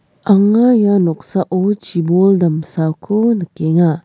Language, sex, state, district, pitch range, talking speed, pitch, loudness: Garo, female, Meghalaya, West Garo Hills, 165-200 Hz, 90 wpm, 180 Hz, -14 LUFS